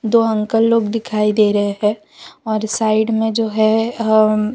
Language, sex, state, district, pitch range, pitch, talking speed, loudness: Hindi, female, Gujarat, Valsad, 215-225 Hz, 220 Hz, 185 wpm, -16 LUFS